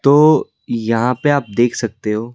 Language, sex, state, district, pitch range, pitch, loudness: Hindi, male, Delhi, New Delhi, 115-145 Hz, 120 Hz, -16 LUFS